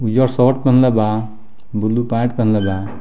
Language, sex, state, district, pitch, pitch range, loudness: Bhojpuri, male, Bihar, Muzaffarpur, 115 Hz, 110-125 Hz, -16 LUFS